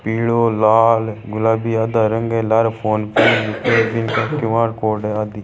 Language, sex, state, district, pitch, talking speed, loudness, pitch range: Marwari, male, Rajasthan, Churu, 110 Hz, 155 wpm, -17 LUFS, 110-115 Hz